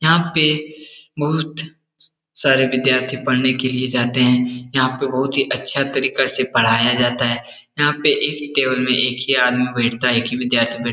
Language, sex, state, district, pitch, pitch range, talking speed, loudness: Hindi, male, Bihar, Jahanabad, 130 Hz, 125-145 Hz, 190 wpm, -17 LUFS